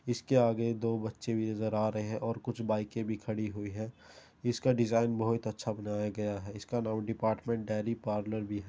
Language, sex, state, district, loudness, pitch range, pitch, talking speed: Hindi, male, Uttar Pradesh, Jyotiba Phule Nagar, -33 LUFS, 105-115 Hz, 110 Hz, 205 wpm